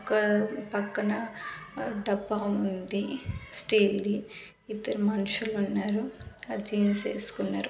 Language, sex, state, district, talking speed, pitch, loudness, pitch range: Telugu, female, Telangana, Nalgonda, 95 wpm, 210 Hz, -30 LUFS, 205-215 Hz